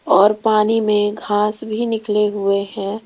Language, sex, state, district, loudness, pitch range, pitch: Hindi, female, Rajasthan, Jaipur, -17 LUFS, 205-220 Hz, 210 Hz